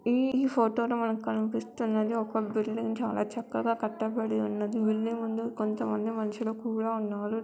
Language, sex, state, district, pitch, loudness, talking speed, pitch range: Telugu, female, Andhra Pradesh, Krishna, 225 Hz, -30 LUFS, 130 wpm, 215-230 Hz